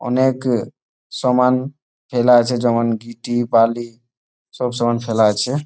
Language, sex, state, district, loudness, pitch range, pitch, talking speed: Bengali, male, West Bengal, Malda, -18 LUFS, 115-125 Hz, 120 Hz, 125 wpm